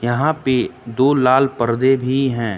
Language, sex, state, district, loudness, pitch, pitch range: Hindi, male, Uttar Pradesh, Lucknow, -17 LUFS, 130 Hz, 120-135 Hz